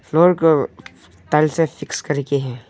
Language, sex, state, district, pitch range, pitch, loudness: Hindi, male, Arunachal Pradesh, Longding, 125-160 Hz, 145 Hz, -18 LUFS